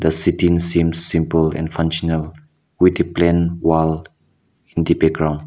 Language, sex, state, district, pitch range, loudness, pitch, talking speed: English, male, Nagaland, Kohima, 80-85 Hz, -17 LUFS, 80 Hz, 130 wpm